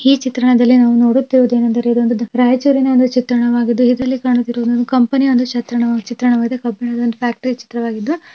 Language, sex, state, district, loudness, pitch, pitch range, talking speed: Kannada, female, Karnataka, Raichur, -14 LUFS, 245 Hz, 240-255 Hz, 135 wpm